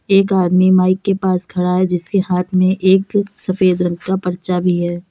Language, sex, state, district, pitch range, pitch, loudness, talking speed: Hindi, female, Uttar Pradesh, Lalitpur, 180-190 Hz, 185 Hz, -16 LUFS, 210 wpm